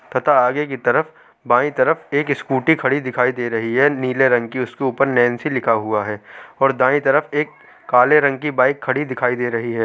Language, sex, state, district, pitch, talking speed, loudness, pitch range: Hindi, male, Uttar Pradesh, Hamirpur, 130 Hz, 215 wpm, -18 LUFS, 120-140 Hz